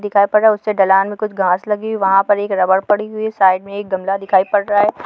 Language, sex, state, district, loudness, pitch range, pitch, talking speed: Hindi, female, Jharkhand, Sahebganj, -15 LUFS, 195-210 Hz, 205 Hz, 320 wpm